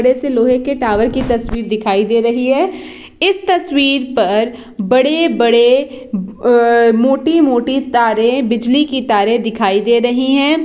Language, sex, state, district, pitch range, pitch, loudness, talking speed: Hindi, female, Bihar, Jahanabad, 230-270 Hz, 245 Hz, -13 LUFS, 165 wpm